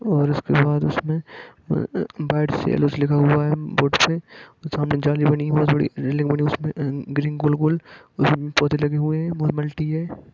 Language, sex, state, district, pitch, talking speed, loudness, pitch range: Hindi, male, Jharkhand, Sahebganj, 150 Hz, 170 wpm, -21 LUFS, 145-155 Hz